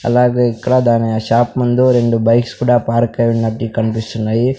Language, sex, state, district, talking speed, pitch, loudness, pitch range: Telugu, male, Andhra Pradesh, Sri Satya Sai, 155 wpm, 115 Hz, -14 LUFS, 115-125 Hz